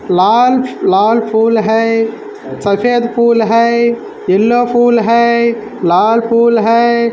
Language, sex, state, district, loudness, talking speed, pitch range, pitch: Hindi, male, Maharashtra, Solapur, -11 LUFS, 100 wpm, 225-235 Hz, 230 Hz